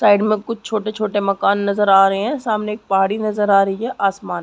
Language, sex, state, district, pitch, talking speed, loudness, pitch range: Hindi, female, Chhattisgarh, Sarguja, 205 Hz, 245 wpm, -17 LUFS, 195-215 Hz